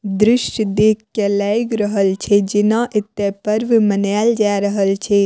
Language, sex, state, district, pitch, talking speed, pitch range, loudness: Maithili, female, Bihar, Madhepura, 210 Hz, 150 wpm, 200-220 Hz, -16 LUFS